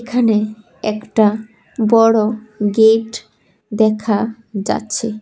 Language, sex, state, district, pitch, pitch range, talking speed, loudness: Bengali, female, Tripura, West Tripura, 220 Hz, 215-225 Hz, 70 wpm, -16 LUFS